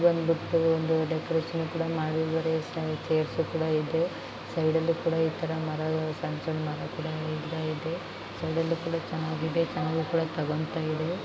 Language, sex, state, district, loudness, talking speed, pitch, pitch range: Kannada, female, Karnataka, Gulbarga, -29 LUFS, 100 wpm, 160 Hz, 155-165 Hz